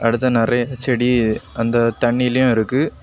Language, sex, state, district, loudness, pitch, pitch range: Tamil, male, Tamil Nadu, Kanyakumari, -18 LUFS, 120 Hz, 115-125 Hz